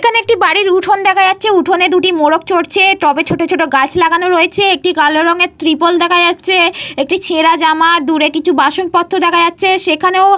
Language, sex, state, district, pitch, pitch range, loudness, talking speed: Bengali, female, Jharkhand, Jamtara, 345 Hz, 325-375 Hz, -10 LUFS, 185 wpm